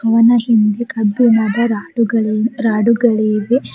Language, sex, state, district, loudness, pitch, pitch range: Kannada, female, Karnataka, Bidar, -14 LUFS, 230 Hz, 215-235 Hz